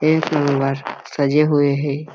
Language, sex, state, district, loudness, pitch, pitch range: Chhattisgarhi, male, Chhattisgarh, Jashpur, -18 LUFS, 145 Hz, 140-150 Hz